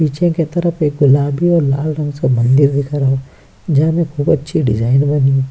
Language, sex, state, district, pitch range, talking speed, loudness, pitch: Hindi, male, Bihar, Kishanganj, 135-160 Hz, 220 wpm, -15 LUFS, 145 Hz